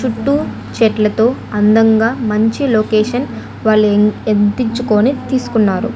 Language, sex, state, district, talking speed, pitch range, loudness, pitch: Telugu, female, Andhra Pradesh, Annamaya, 80 wpm, 215-245 Hz, -14 LUFS, 225 Hz